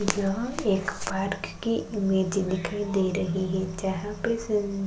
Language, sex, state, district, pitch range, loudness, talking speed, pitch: Hindi, female, Uttarakhand, Tehri Garhwal, 190-205 Hz, -28 LUFS, 160 wpm, 195 Hz